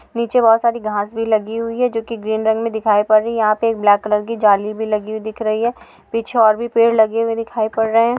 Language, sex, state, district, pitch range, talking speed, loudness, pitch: Hindi, female, Goa, North and South Goa, 215-230 Hz, 295 wpm, -17 LUFS, 225 Hz